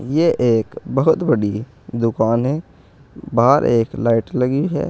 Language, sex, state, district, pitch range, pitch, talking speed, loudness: Hindi, male, Uttar Pradesh, Saharanpur, 115-145 Hz, 125 Hz, 135 wpm, -18 LUFS